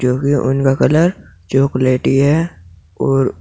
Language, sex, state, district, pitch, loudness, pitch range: Hindi, male, Uttar Pradesh, Saharanpur, 135 Hz, -15 LUFS, 130-145 Hz